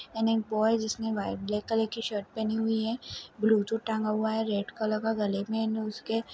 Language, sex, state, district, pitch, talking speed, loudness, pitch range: Hindi, female, Chhattisgarh, Balrampur, 220 Hz, 190 wpm, -30 LUFS, 215-225 Hz